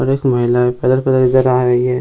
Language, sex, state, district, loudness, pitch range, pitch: Hindi, male, Bihar, Jamui, -14 LUFS, 125-130 Hz, 125 Hz